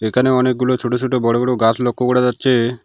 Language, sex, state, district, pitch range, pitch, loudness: Bengali, male, West Bengal, Alipurduar, 120-125 Hz, 125 Hz, -16 LUFS